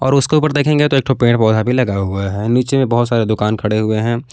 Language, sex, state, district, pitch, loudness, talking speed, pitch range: Hindi, male, Jharkhand, Palamu, 120 Hz, -15 LUFS, 275 wpm, 110-135 Hz